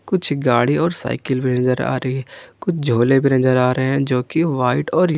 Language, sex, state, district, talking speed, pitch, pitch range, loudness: Hindi, male, Jharkhand, Ranchi, 230 wpm, 130 Hz, 125-150 Hz, -18 LUFS